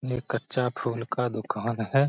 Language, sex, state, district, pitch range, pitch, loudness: Hindi, male, Bihar, Gaya, 115-125 Hz, 120 Hz, -28 LUFS